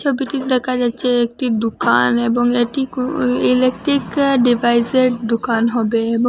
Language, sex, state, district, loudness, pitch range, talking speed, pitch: Bengali, female, Assam, Hailakandi, -16 LUFS, 235-260 Hz, 135 wpm, 245 Hz